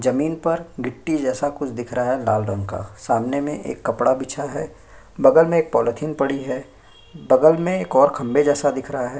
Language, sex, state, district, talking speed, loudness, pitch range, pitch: Hindi, male, Chhattisgarh, Sukma, 195 wpm, -20 LUFS, 125-155 Hz, 140 Hz